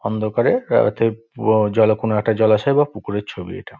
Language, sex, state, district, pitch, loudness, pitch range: Bengali, male, West Bengal, Dakshin Dinajpur, 110 Hz, -18 LUFS, 110-115 Hz